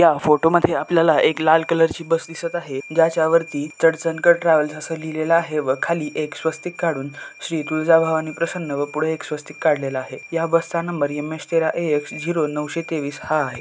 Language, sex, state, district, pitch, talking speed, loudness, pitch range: Marathi, male, Maharashtra, Solapur, 160 Hz, 205 wpm, -20 LUFS, 150-165 Hz